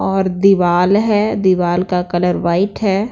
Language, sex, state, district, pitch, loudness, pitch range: Hindi, female, Bihar, Patna, 190 Hz, -15 LUFS, 180-200 Hz